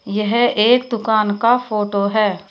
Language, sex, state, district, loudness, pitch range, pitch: Hindi, female, Uttar Pradesh, Shamli, -16 LUFS, 205-235 Hz, 215 Hz